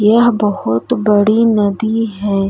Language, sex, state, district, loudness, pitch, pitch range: Bhojpuri, female, Uttar Pradesh, Gorakhpur, -14 LUFS, 210 Hz, 200-225 Hz